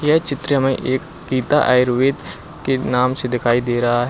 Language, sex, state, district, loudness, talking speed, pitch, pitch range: Hindi, male, Uttar Pradesh, Lucknow, -18 LUFS, 175 wpm, 130 Hz, 125-140 Hz